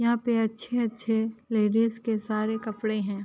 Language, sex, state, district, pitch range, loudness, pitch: Hindi, female, Uttar Pradesh, Ghazipur, 215-230 Hz, -27 LUFS, 225 Hz